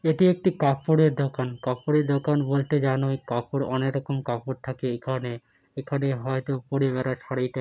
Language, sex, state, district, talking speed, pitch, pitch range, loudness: Bengali, male, West Bengal, Malda, 150 wpm, 135 Hz, 130-140 Hz, -26 LUFS